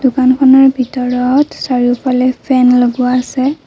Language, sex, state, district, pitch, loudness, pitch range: Assamese, female, Assam, Kamrup Metropolitan, 255 Hz, -11 LUFS, 250-265 Hz